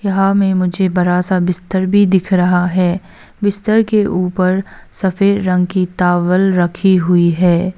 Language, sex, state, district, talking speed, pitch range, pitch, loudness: Hindi, female, Arunachal Pradesh, Papum Pare, 155 wpm, 180-195 Hz, 185 Hz, -14 LUFS